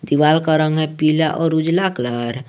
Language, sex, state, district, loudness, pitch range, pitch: Hindi, male, Jharkhand, Garhwa, -17 LUFS, 150-160 Hz, 155 Hz